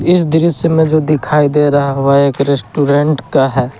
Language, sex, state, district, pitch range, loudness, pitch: Hindi, male, Jharkhand, Garhwa, 140-155 Hz, -12 LUFS, 145 Hz